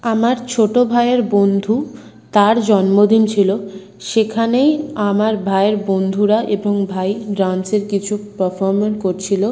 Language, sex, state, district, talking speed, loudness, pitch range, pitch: Bengali, female, West Bengal, North 24 Parganas, 105 wpm, -16 LUFS, 195-225 Hz, 205 Hz